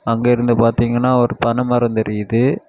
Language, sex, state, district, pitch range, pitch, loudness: Tamil, male, Tamil Nadu, Kanyakumari, 115-120 Hz, 120 Hz, -16 LUFS